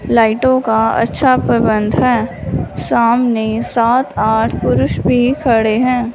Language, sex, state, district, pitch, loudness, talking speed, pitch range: Hindi, female, Punjab, Fazilka, 235 Hz, -14 LUFS, 115 wpm, 220-250 Hz